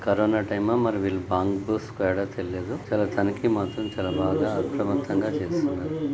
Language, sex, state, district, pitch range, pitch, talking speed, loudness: Telugu, male, Telangana, Karimnagar, 95-110 Hz, 100 Hz, 135 wpm, -26 LUFS